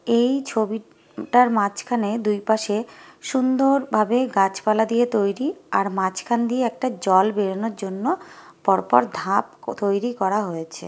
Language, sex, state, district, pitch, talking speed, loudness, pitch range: Bengali, female, West Bengal, Jhargram, 220 Hz, 120 wpm, -22 LUFS, 200-245 Hz